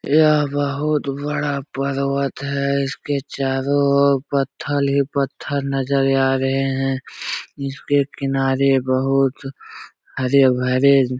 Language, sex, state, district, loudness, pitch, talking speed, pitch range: Hindi, male, Bihar, Jahanabad, -19 LUFS, 140 Hz, 105 wpm, 135-140 Hz